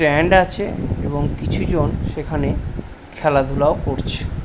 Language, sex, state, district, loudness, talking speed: Bengali, male, West Bengal, Paschim Medinipur, -19 LUFS, 110 wpm